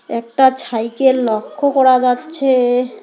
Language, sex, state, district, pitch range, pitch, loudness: Bengali, female, West Bengal, Alipurduar, 235-265 Hz, 255 Hz, -15 LUFS